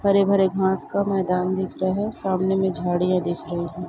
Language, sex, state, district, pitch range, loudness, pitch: Hindi, female, Chhattisgarh, Bilaspur, 180-195 Hz, -22 LUFS, 190 Hz